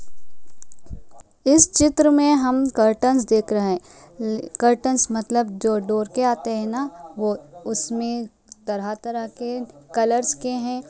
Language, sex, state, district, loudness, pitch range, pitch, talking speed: Hindi, female, Uttar Pradesh, Ghazipur, -21 LUFS, 220-255 Hz, 235 Hz, 140 wpm